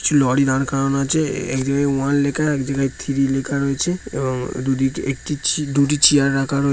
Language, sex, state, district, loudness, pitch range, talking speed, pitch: Bengali, male, West Bengal, Dakshin Dinajpur, -19 LUFS, 135-145 Hz, 185 wpm, 140 Hz